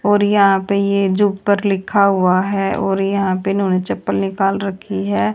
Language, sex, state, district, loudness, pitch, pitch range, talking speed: Hindi, female, Haryana, Charkhi Dadri, -17 LUFS, 195 Hz, 190-200 Hz, 200 wpm